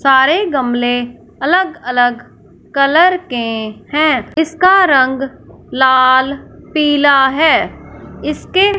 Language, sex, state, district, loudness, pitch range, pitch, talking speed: Hindi, male, Punjab, Fazilka, -13 LUFS, 255-320 Hz, 275 Hz, 90 wpm